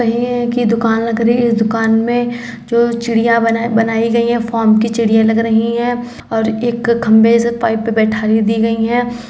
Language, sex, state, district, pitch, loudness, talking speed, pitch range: Hindi, female, Uttar Pradesh, Hamirpur, 230 Hz, -14 LUFS, 200 wpm, 225-235 Hz